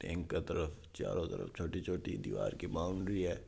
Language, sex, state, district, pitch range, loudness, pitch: Hindi, male, Rajasthan, Nagaur, 85-90 Hz, -39 LUFS, 90 Hz